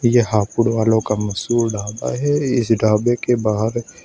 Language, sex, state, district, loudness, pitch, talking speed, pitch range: Hindi, male, Uttar Pradesh, Shamli, -18 LUFS, 115 Hz, 160 wpm, 105-120 Hz